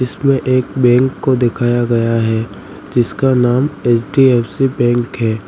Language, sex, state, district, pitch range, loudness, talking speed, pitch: Hindi, male, Uttar Pradesh, Lalitpur, 115-130 Hz, -14 LUFS, 130 wpm, 120 Hz